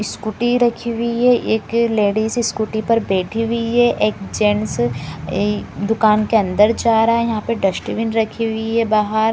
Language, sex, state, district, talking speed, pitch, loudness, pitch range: Hindi, female, Bihar, Supaul, 175 wpm, 220 Hz, -18 LUFS, 210-230 Hz